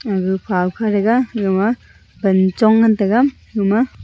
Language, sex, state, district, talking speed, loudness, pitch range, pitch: Wancho, female, Arunachal Pradesh, Longding, 135 wpm, -16 LUFS, 190-225 Hz, 210 Hz